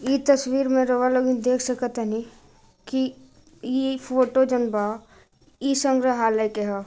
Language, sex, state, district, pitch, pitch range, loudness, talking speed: Bhojpuri, female, Bihar, Gopalganj, 255 Hz, 230-265 Hz, -23 LUFS, 140 wpm